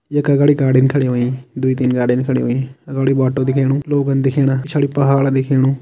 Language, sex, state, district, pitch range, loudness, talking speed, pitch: Kumaoni, male, Uttarakhand, Tehri Garhwal, 130-140 Hz, -16 LUFS, 175 wpm, 135 Hz